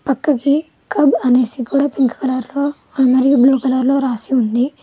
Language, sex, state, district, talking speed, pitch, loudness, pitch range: Telugu, female, Telangana, Mahabubabad, 160 wpm, 265 Hz, -16 LUFS, 255-280 Hz